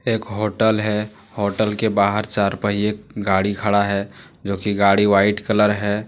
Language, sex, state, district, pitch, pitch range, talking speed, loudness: Hindi, male, Jharkhand, Deoghar, 105 Hz, 100-105 Hz, 160 wpm, -19 LUFS